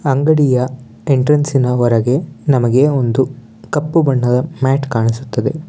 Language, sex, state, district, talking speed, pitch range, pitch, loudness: Kannada, male, Karnataka, Bangalore, 105 wpm, 125-145 Hz, 130 Hz, -15 LUFS